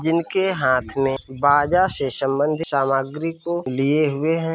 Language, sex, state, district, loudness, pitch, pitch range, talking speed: Hindi, male, Uttar Pradesh, Varanasi, -20 LUFS, 145 Hz, 135-165 Hz, 160 wpm